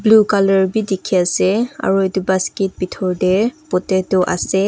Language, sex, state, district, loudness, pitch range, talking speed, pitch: Nagamese, female, Nagaland, Kohima, -17 LUFS, 185-205 Hz, 155 wpm, 190 Hz